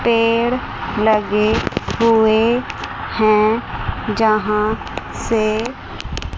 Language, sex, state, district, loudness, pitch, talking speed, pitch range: Hindi, female, Chandigarh, Chandigarh, -18 LUFS, 220 Hz, 55 wpm, 215-230 Hz